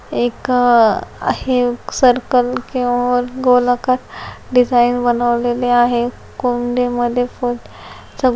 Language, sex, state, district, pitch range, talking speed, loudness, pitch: Marathi, female, Maharashtra, Pune, 240-250 Hz, 80 wpm, -16 LUFS, 245 Hz